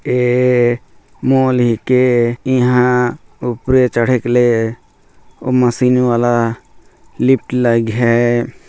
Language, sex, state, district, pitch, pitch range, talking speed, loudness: Chhattisgarhi, male, Chhattisgarh, Jashpur, 125 Hz, 120-125 Hz, 85 wpm, -14 LUFS